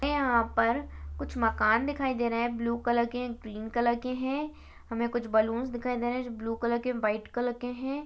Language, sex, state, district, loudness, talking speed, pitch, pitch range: Hindi, female, Maharashtra, Aurangabad, -30 LUFS, 225 wpm, 235 Hz, 225-250 Hz